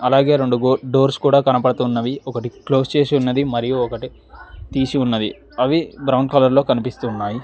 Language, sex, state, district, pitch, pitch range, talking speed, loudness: Telugu, male, Telangana, Mahabubabad, 130 Hz, 120-140 Hz, 160 wpm, -18 LUFS